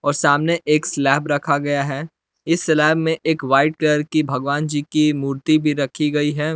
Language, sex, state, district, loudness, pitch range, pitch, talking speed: Hindi, male, Jharkhand, Palamu, -19 LUFS, 145-155 Hz, 150 Hz, 200 wpm